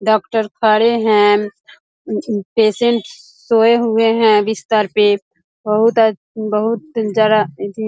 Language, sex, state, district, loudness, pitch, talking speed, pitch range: Hindi, female, Bihar, East Champaran, -15 LUFS, 220 Hz, 115 wpm, 210-225 Hz